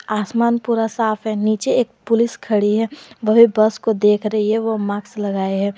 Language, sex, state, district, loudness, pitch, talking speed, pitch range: Hindi, female, Jharkhand, Garhwa, -18 LUFS, 215 Hz, 210 wpm, 210-230 Hz